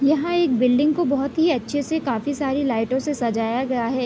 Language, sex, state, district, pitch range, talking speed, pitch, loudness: Hindi, female, Bihar, Gopalganj, 245-295 Hz, 220 wpm, 275 Hz, -21 LUFS